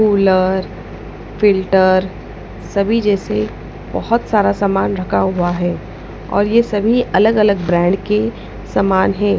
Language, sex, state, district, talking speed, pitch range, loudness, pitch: Hindi, female, Punjab, Pathankot, 115 wpm, 185-210 Hz, -15 LUFS, 195 Hz